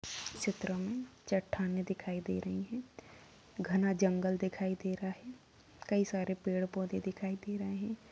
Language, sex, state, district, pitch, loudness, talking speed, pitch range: Hindi, female, Bihar, Purnia, 190 Hz, -36 LUFS, 150 wpm, 185-200 Hz